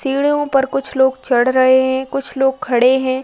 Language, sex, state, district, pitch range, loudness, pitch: Hindi, female, Uttar Pradesh, Budaun, 260-275 Hz, -15 LUFS, 265 Hz